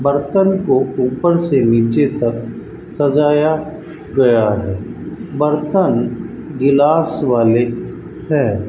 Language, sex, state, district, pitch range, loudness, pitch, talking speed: Hindi, male, Rajasthan, Bikaner, 120-160 Hz, -15 LUFS, 140 Hz, 90 wpm